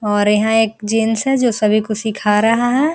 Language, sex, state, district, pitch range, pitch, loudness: Hindi, female, Bihar, Araria, 210-230 Hz, 220 Hz, -15 LUFS